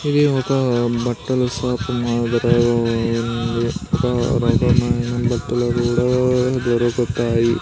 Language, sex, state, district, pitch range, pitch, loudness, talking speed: Telugu, male, Andhra Pradesh, Sri Satya Sai, 120-125 Hz, 120 Hz, -19 LUFS, 85 wpm